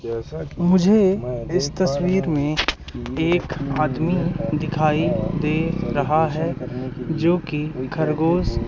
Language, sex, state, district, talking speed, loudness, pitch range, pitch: Hindi, male, Madhya Pradesh, Katni, 90 wpm, -21 LUFS, 140-170 Hz, 155 Hz